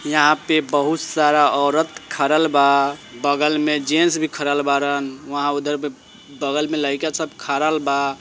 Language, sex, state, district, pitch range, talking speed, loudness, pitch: Bajjika, male, Bihar, Vaishali, 140-155 Hz, 170 wpm, -19 LUFS, 145 Hz